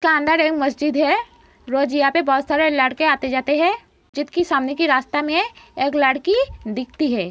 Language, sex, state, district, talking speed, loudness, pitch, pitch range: Hindi, female, Uttar Pradesh, Etah, 170 wpm, -19 LUFS, 290 Hz, 270-325 Hz